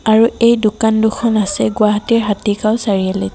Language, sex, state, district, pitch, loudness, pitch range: Assamese, female, Assam, Kamrup Metropolitan, 215 Hz, -14 LUFS, 205-225 Hz